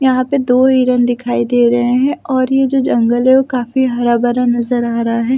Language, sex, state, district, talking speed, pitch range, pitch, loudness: Hindi, female, Delhi, New Delhi, 235 wpm, 240-260 Hz, 250 Hz, -13 LUFS